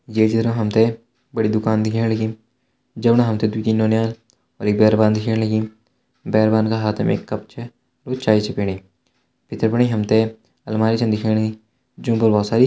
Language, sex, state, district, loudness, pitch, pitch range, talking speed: Hindi, male, Uttarakhand, Uttarkashi, -19 LUFS, 110 Hz, 110-115 Hz, 185 wpm